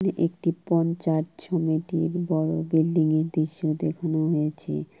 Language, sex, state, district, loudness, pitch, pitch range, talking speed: Bengali, female, West Bengal, Purulia, -25 LUFS, 160 Hz, 155-170 Hz, 110 wpm